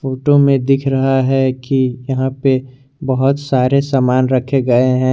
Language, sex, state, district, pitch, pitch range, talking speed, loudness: Hindi, male, Jharkhand, Garhwa, 130 Hz, 130-135 Hz, 165 wpm, -15 LUFS